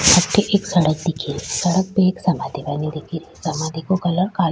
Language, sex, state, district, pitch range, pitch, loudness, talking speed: Rajasthani, female, Rajasthan, Churu, 160-185 Hz, 175 Hz, -20 LUFS, 225 wpm